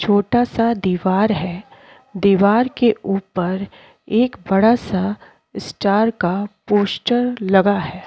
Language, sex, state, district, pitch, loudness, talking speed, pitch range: Hindi, female, Uttar Pradesh, Jyotiba Phule Nagar, 205 Hz, -18 LUFS, 110 wpm, 190-230 Hz